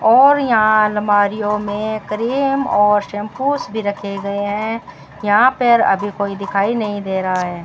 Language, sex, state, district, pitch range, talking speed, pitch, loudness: Hindi, female, Rajasthan, Bikaner, 200-225 Hz, 155 wpm, 210 Hz, -17 LUFS